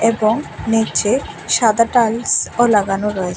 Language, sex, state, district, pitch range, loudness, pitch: Bengali, female, Tripura, West Tripura, 210-230 Hz, -16 LUFS, 225 Hz